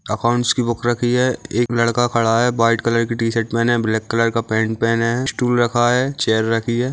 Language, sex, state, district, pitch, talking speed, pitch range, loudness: Hindi, male, Maharashtra, Aurangabad, 115 Hz, 225 wpm, 115-120 Hz, -18 LUFS